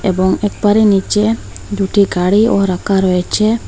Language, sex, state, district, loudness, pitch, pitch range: Bengali, female, Assam, Hailakandi, -13 LUFS, 200 Hz, 190-210 Hz